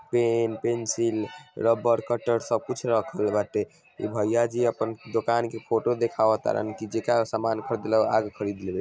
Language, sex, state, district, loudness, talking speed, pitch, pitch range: Bhojpuri, male, Bihar, Saran, -26 LUFS, 170 wpm, 115 Hz, 110-115 Hz